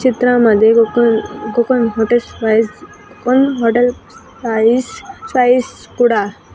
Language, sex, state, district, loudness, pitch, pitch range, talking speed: Marathi, female, Maharashtra, Sindhudurg, -14 LUFS, 240 Hz, 225-255 Hz, 90 wpm